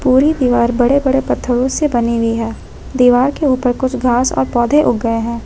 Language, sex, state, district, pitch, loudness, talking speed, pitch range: Hindi, female, Jharkhand, Ranchi, 250 Hz, -14 LUFS, 210 wpm, 235-265 Hz